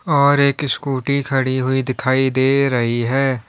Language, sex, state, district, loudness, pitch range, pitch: Hindi, male, Uttar Pradesh, Lalitpur, -17 LUFS, 130-140 Hz, 135 Hz